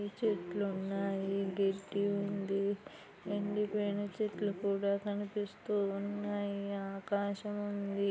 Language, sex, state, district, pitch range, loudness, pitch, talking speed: Telugu, female, Andhra Pradesh, Anantapur, 195-205 Hz, -36 LUFS, 200 Hz, 80 wpm